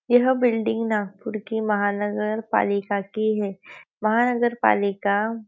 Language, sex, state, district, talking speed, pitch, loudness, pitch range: Hindi, female, Maharashtra, Nagpur, 130 wpm, 215 Hz, -23 LUFS, 205-225 Hz